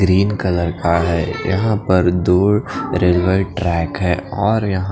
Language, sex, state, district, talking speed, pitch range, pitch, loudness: Hindi, male, Odisha, Khordha, 145 wpm, 90-100 Hz, 90 Hz, -17 LUFS